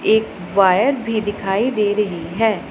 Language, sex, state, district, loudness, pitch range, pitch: Hindi, female, Punjab, Pathankot, -18 LUFS, 195-220 Hz, 210 Hz